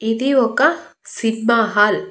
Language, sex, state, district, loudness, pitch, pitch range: Telugu, female, Andhra Pradesh, Annamaya, -17 LUFS, 225 Hz, 220-235 Hz